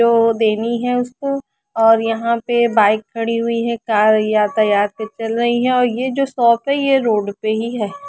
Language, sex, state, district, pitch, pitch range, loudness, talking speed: Hindi, female, Chandigarh, Chandigarh, 230 Hz, 220-245 Hz, -17 LUFS, 195 wpm